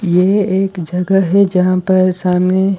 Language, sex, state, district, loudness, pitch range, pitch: Hindi, male, Delhi, New Delhi, -13 LUFS, 180-195 Hz, 185 Hz